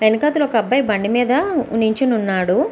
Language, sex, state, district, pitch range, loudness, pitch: Telugu, female, Andhra Pradesh, Visakhapatnam, 215-265 Hz, -17 LUFS, 235 Hz